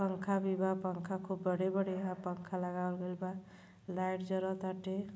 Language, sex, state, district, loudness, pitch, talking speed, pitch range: Bhojpuri, female, Uttar Pradesh, Gorakhpur, -37 LUFS, 190 Hz, 150 wpm, 185-190 Hz